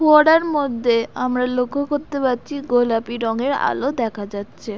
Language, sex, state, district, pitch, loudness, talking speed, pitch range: Bengali, female, West Bengal, Dakshin Dinajpur, 250 Hz, -20 LUFS, 140 wpm, 235-285 Hz